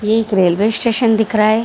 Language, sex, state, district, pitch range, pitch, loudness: Hindi, female, Bihar, Saharsa, 210-225 Hz, 220 Hz, -14 LUFS